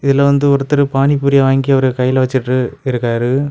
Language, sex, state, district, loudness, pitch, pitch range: Tamil, male, Tamil Nadu, Kanyakumari, -14 LUFS, 135 Hz, 130-140 Hz